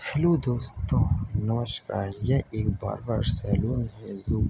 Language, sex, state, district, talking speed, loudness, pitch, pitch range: Hindi, male, Bihar, Bhagalpur, 135 wpm, -28 LUFS, 110 Hz, 100-120 Hz